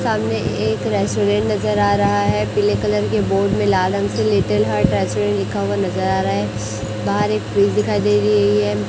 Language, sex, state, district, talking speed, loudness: Hindi, female, Chhattisgarh, Raipur, 210 wpm, -18 LUFS